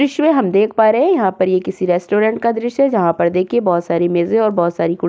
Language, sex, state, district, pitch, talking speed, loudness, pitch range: Hindi, female, Uttar Pradesh, Jyotiba Phule Nagar, 205 Hz, 285 wpm, -15 LUFS, 175-235 Hz